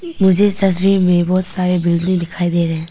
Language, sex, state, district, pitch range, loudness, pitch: Hindi, female, Arunachal Pradesh, Papum Pare, 175-190 Hz, -15 LUFS, 180 Hz